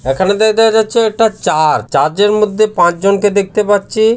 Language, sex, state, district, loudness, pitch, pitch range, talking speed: Bengali, male, West Bengal, Jhargram, -12 LUFS, 205 Hz, 190-220 Hz, 185 wpm